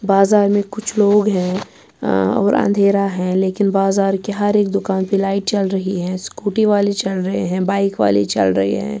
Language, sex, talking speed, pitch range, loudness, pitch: Urdu, female, 200 wpm, 185-205 Hz, -17 LUFS, 195 Hz